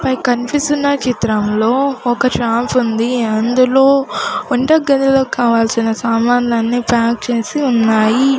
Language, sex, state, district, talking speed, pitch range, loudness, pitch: Telugu, female, Andhra Pradesh, Sri Satya Sai, 85 wpm, 230-270 Hz, -14 LUFS, 245 Hz